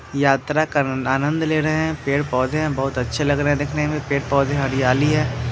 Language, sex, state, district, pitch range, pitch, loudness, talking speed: Hindi, male, Bihar, Muzaffarpur, 135-150 Hz, 145 Hz, -20 LUFS, 205 wpm